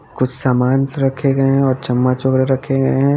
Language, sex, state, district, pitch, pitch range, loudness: Hindi, female, Haryana, Charkhi Dadri, 135 Hz, 130-135 Hz, -16 LUFS